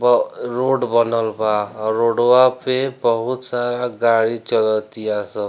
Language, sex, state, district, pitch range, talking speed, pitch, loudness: Bhojpuri, male, Bihar, Gopalganj, 110-125 Hz, 130 wpm, 115 Hz, -18 LUFS